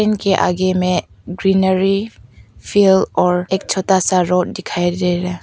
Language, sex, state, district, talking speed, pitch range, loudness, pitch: Hindi, female, Arunachal Pradesh, Papum Pare, 145 wpm, 180-190 Hz, -16 LUFS, 185 Hz